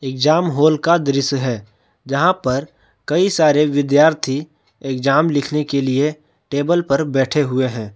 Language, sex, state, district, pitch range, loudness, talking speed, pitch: Hindi, male, Jharkhand, Palamu, 135-155 Hz, -17 LUFS, 145 wpm, 145 Hz